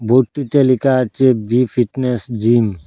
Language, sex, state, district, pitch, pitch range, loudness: Bengali, male, Assam, Hailakandi, 125 Hz, 115-130 Hz, -15 LUFS